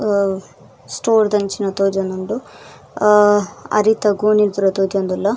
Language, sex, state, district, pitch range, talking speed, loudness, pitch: Tulu, female, Karnataka, Dakshina Kannada, 190-210 Hz, 100 wpm, -17 LUFS, 200 Hz